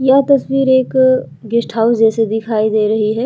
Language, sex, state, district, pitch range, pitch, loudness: Hindi, female, Bihar, Vaishali, 220-260 Hz, 235 Hz, -14 LUFS